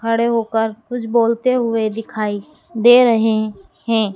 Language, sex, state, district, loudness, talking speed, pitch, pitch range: Hindi, female, Madhya Pradesh, Dhar, -17 LUFS, 130 wpm, 225 Hz, 220-235 Hz